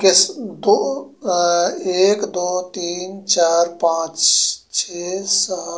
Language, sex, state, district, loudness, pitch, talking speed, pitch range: Bhojpuri, male, Uttar Pradesh, Gorakhpur, -18 LUFS, 180 Hz, 115 wpm, 175-195 Hz